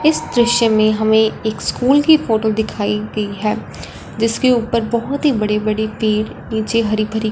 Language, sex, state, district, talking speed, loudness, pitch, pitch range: Hindi, female, Punjab, Fazilka, 170 wpm, -16 LUFS, 220 Hz, 215-235 Hz